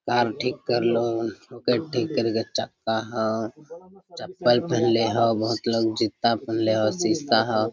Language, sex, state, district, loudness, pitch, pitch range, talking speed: Hindi, male, Jharkhand, Sahebganj, -24 LUFS, 115 Hz, 110-120 Hz, 165 wpm